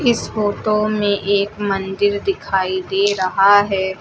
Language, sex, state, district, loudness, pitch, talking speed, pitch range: Hindi, female, Uttar Pradesh, Lucknow, -17 LUFS, 200 Hz, 135 wpm, 195-205 Hz